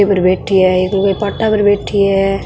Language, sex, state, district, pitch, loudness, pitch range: Marwari, female, Rajasthan, Nagaur, 195 Hz, -13 LUFS, 190-205 Hz